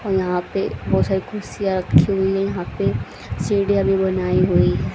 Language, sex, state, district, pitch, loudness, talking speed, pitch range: Hindi, female, Haryana, Rohtak, 190 Hz, -20 LUFS, 170 wpm, 180-195 Hz